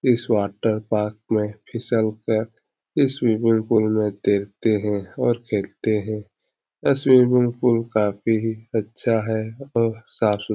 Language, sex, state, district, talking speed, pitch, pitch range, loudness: Hindi, male, Uttar Pradesh, Etah, 125 wpm, 110 Hz, 105-115 Hz, -22 LUFS